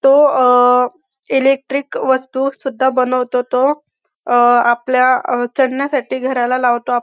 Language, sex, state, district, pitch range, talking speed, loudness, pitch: Marathi, female, Maharashtra, Dhule, 245-270 Hz, 120 wpm, -15 LUFS, 255 Hz